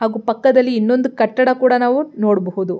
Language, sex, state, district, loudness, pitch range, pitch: Kannada, female, Karnataka, Mysore, -16 LUFS, 215-255 Hz, 240 Hz